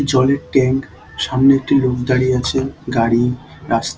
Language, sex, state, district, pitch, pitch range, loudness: Bengali, male, West Bengal, Dakshin Dinajpur, 130 Hz, 120-135 Hz, -16 LUFS